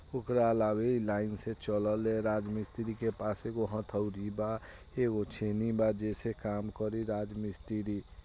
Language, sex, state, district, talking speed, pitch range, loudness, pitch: Bhojpuri, male, Bihar, East Champaran, 145 wpm, 105-110 Hz, -34 LUFS, 105 Hz